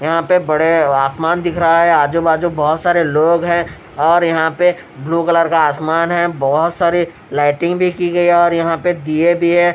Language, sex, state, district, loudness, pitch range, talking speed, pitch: Hindi, male, Bihar, Katihar, -14 LUFS, 160-175 Hz, 195 wpm, 170 Hz